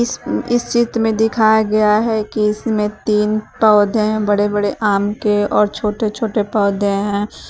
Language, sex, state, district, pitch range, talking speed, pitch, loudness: Hindi, female, Uttar Pradesh, Shamli, 210-220 Hz, 170 wpm, 215 Hz, -16 LUFS